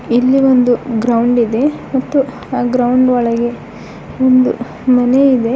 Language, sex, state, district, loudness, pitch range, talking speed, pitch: Kannada, female, Karnataka, Bidar, -13 LUFS, 240-260 Hz, 120 wpm, 250 Hz